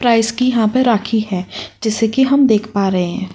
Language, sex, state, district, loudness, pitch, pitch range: Hindi, female, Uttar Pradesh, Jyotiba Phule Nagar, -15 LUFS, 220 Hz, 200-245 Hz